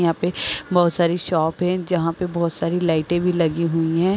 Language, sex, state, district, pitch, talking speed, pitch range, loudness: Hindi, female, Uttar Pradesh, Varanasi, 170 Hz, 200 wpm, 165-180 Hz, -21 LUFS